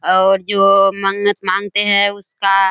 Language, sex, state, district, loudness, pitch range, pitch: Hindi, female, Bihar, Kishanganj, -14 LUFS, 195-205 Hz, 195 Hz